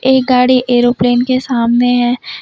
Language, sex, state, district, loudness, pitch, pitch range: Hindi, female, Uttar Pradesh, Lucknow, -12 LUFS, 245 Hz, 245-255 Hz